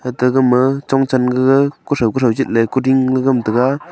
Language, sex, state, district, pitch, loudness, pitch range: Wancho, male, Arunachal Pradesh, Longding, 130 Hz, -15 LUFS, 125-135 Hz